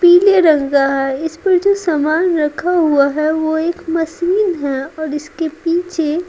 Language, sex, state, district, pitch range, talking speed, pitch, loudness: Hindi, female, Bihar, Patna, 300-350 Hz, 160 wpm, 320 Hz, -15 LUFS